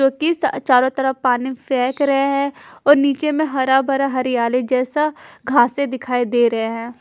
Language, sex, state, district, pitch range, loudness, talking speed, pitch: Hindi, female, Punjab, Fazilka, 250-280 Hz, -18 LUFS, 180 wpm, 265 Hz